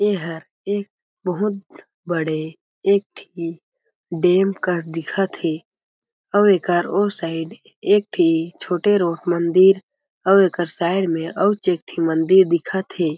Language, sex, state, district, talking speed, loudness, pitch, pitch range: Chhattisgarhi, male, Chhattisgarh, Jashpur, 135 wpm, -20 LUFS, 180 Hz, 165-200 Hz